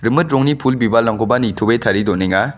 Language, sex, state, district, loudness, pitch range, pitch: Garo, male, Meghalaya, West Garo Hills, -15 LUFS, 110-130 Hz, 115 Hz